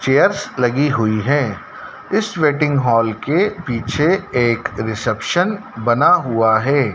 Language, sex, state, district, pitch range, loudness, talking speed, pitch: Hindi, male, Madhya Pradesh, Dhar, 115-150 Hz, -17 LUFS, 120 wpm, 125 Hz